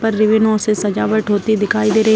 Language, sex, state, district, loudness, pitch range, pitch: Hindi, female, Bihar, Sitamarhi, -15 LUFS, 210-220 Hz, 215 Hz